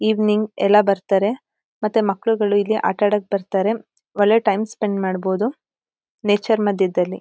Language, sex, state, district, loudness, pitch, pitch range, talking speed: Kannada, female, Karnataka, Mysore, -19 LUFS, 205 Hz, 195-215 Hz, 115 wpm